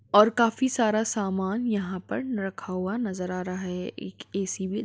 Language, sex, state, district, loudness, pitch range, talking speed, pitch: Hindi, female, Bihar, Gopalganj, -27 LUFS, 190-225 Hz, 200 wpm, 200 Hz